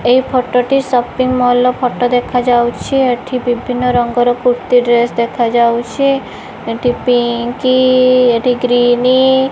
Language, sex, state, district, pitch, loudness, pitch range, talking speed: Odia, female, Odisha, Khordha, 245 Hz, -13 LUFS, 240-255 Hz, 120 wpm